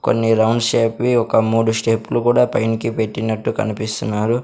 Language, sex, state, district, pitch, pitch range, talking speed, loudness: Telugu, male, Andhra Pradesh, Sri Satya Sai, 115 Hz, 110-115 Hz, 160 wpm, -18 LUFS